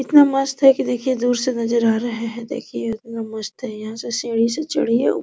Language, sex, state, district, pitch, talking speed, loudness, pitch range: Hindi, female, Bihar, Araria, 235 Hz, 220 wpm, -20 LUFS, 230-260 Hz